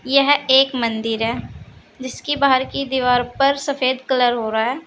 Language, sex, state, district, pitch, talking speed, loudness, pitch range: Hindi, female, Uttar Pradesh, Saharanpur, 260 Hz, 170 wpm, -18 LUFS, 245-275 Hz